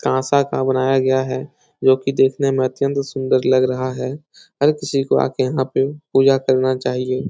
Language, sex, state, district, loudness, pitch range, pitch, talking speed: Hindi, male, Bihar, Supaul, -18 LUFS, 130-135 Hz, 130 Hz, 190 wpm